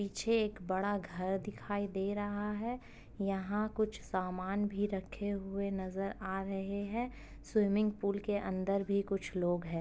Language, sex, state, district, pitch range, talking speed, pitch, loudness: Hindi, female, Uttar Pradesh, Gorakhpur, 195-205 Hz, 160 wpm, 200 Hz, -36 LUFS